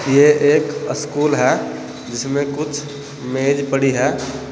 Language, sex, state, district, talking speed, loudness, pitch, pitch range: Hindi, male, Uttar Pradesh, Saharanpur, 120 wpm, -18 LUFS, 140 Hz, 135-145 Hz